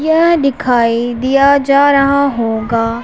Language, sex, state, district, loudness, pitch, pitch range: Hindi, female, Punjab, Pathankot, -12 LUFS, 275 Hz, 235-280 Hz